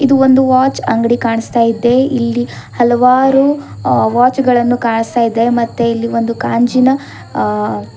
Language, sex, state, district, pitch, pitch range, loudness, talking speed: Kannada, female, Karnataka, Bidar, 240 Hz, 230-255 Hz, -12 LUFS, 130 wpm